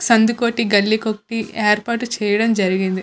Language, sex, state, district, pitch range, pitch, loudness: Telugu, female, Andhra Pradesh, Visakhapatnam, 205-230 Hz, 220 Hz, -18 LUFS